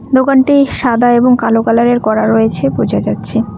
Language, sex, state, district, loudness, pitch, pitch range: Bengali, female, West Bengal, Cooch Behar, -11 LUFS, 240 Hz, 225-260 Hz